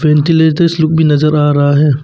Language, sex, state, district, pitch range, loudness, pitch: Hindi, male, Arunachal Pradesh, Papum Pare, 150-160 Hz, -10 LUFS, 150 Hz